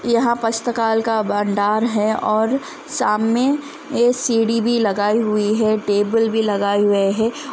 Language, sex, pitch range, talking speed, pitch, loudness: Hindi, female, 210-240 Hz, 95 wpm, 225 Hz, -18 LUFS